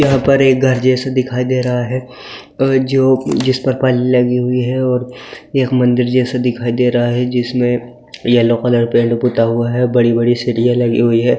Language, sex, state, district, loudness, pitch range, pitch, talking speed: Hindi, male, Bihar, Sitamarhi, -14 LUFS, 120-130 Hz, 125 Hz, 125 wpm